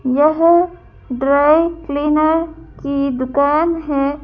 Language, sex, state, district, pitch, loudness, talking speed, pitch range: Hindi, female, Madhya Pradesh, Bhopal, 295 Hz, -16 LUFS, 85 wpm, 280-325 Hz